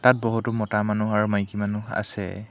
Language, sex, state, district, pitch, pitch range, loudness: Assamese, male, Assam, Hailakandi, 105 Hz, 105-115 Hz, -24 LUFS